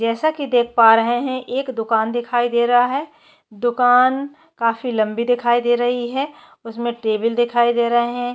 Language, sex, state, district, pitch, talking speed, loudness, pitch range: Hindi, female, Chhattisgarh, Korba, 240 Hz, 170 wpm, -18 LUFS, 235-255 Hz